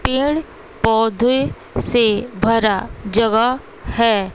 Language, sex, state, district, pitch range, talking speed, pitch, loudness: Hindi, female, Bihar, West Champaran, 220-245 Hz, 85 wpm, 225 Hz, -17 LUFS